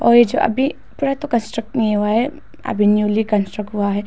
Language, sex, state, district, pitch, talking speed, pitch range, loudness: Hindi, female, Arunachal Pradesh, Papum Pare, 220 Hz, 220 wpm, 210-250 Hz, -18 LUFS